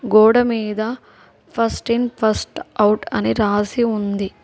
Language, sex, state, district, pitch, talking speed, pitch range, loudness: Telugu, female, Telangana, Hyderabad, 220 Hz, 120 wpm, 210-235 Hz, -18 LUFS